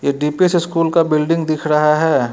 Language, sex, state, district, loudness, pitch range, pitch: Hindi, male, Bihar, Muzaffarpur, -16 LUFS, 150-165 Hz, 155 Hz